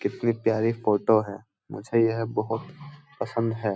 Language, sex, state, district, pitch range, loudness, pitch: Hindi, male, Uttar Pradesh, Jyotiba Phule Nagar, 110-115 Hz, -25 LUFS, 115 Hz